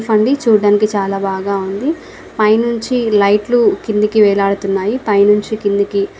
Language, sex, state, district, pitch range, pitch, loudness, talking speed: Telugu, female, Andhra Pradesh, Visakhapatnam, 200-225 Hz, 210 Hz, -14 LUFS, 155 wpm